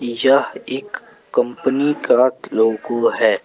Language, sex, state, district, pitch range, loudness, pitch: Hindi, male, Jharkhand, Palamu, 120-135 Hz, -18 LUFS, 125 Hz